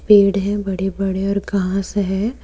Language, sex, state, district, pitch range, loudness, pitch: Hindi, female, Jharkhand, Deoghar, 195-200 Hz, -19 LUFS, 195 Hz